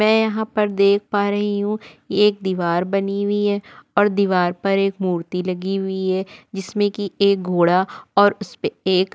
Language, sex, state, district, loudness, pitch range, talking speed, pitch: Hindi, female, Maharashtra, Aurangabad, -20 LUFS, 185-205 Hz, 185 wpm, 200 Hz